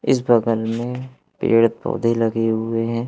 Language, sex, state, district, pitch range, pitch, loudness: Hindi, male, Madhya Pradesh, Katni, 115-120 Hz, 115 Hz, -20 LUFS